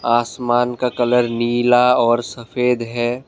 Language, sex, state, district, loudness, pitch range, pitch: Hindi, male, Assam, Kamrup Metropolitan, -17 LUFS, 120-125 Hz, 120 Hz